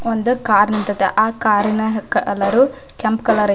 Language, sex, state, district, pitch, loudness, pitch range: Kannada, female, Karnataka, Dharwad, 215 Hz, -17 LUFS, 205-230 Hz